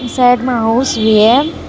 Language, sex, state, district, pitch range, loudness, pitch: Hindi, female, Jharkhand, Deoghar, 225-255 Hz, -11 LUFS, 245 Hz